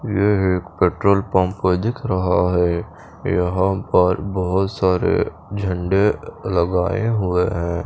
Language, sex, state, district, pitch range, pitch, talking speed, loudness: Hindi, male, Chandigarh, Chandigarh, 90-100 Hz, 95 Hz, 105 wpm, -19 LUFS